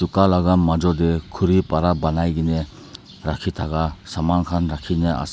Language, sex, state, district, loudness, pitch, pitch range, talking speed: Nagamese, male, Nagaland, Dimapur, -20 LUFS, 85 Hz, 80-90 Hz, 135 wpm